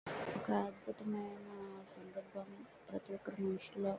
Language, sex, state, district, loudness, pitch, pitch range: Telugu, female, Andhra Pradesh, Guntur, -44 LUFS, 195 Hz, 190-200 Hz